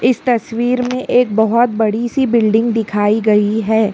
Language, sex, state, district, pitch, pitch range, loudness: Hindi, female, Karnataka, Bangalore, 225 Hz, 215-245 Hz, -15 LUFS